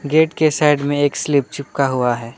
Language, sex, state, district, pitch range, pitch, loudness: Hindi, male, West Bengal, Alipurduar, 135-150 Hz, 145 Hz, -17 LUFS